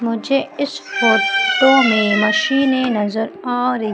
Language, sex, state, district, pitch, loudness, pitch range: Hindi, female, Madhya Pradesh, Umaria, 255 Hz, -16 LUFS, 220-275 Hz